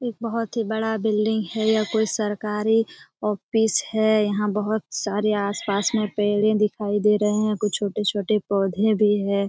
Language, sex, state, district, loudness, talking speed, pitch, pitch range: Hindi, female, Jharkhand, Jamtara, -22 LUFS, 165 wpm, 210 Hz, 205-220 Hz